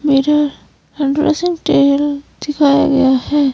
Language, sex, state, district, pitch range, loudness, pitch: Hindi, female, Himachal Pradesh, Shimla, 280-295 Hz, -14 LUFS, 290 Hz